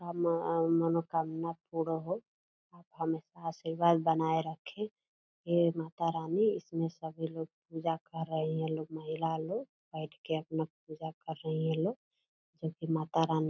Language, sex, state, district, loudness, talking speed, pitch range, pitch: Hindi, female, Bihar, Purnia, -34 LUFS, 160 wpm, 160-170 Hz, 165 Hz